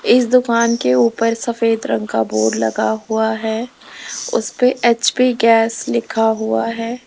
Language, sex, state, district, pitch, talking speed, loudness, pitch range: Hindi, female, Uttar Pradesh, Lalitpur, 230 Hz, 155 wpm, -16 LUFS, 220-235 Hz